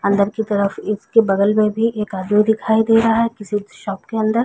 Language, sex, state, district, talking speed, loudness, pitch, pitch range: Hindi, female, Chhattisgarh, Raigarh, 230 wpm, -18 LUFS, 210 Hz, 205-225 Hz